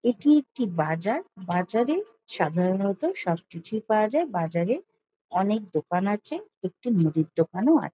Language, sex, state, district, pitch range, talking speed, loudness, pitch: Bengali, female, West Bengal, Jhargram, 175-300 Hz, 130 wpm, -26 LUFS, 215 Hz